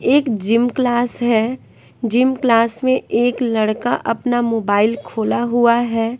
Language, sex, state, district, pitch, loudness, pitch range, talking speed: Hindi, female, Bihar, Patna, 235 Hz, -17 LUFS, 230-245 Hz, 135 wpm